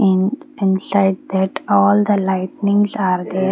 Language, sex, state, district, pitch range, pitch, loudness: English, female, Haryana, Rohtak, 190-205 Hz, 190 Hz, -17 LUFS